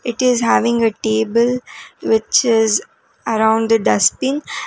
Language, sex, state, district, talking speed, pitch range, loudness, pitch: English, female, Karnataka, Bangalore, 130 wpm, 220-240 Hz, -16 LUFS, 230 Hz